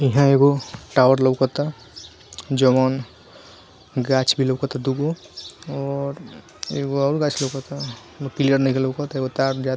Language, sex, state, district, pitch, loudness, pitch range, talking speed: Bhojpuri, male, Bihar, Gopalganj, 135 Hz, -21 LUFS, 130-140 Hz, 130 wpm